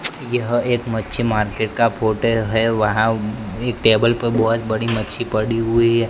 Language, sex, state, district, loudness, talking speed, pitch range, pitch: Hindi, male, Gujarat, Gandhinagar, -19 LUFS, 155 wpm, 110-115 Hz, 115 Hz